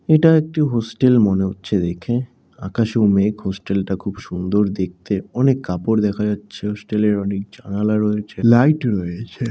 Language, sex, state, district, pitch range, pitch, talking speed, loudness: Bengali, male, West Bengal, Jalpaiguri, 95-115 Hz, 105 Hz, 160 wpm, -19 LUFS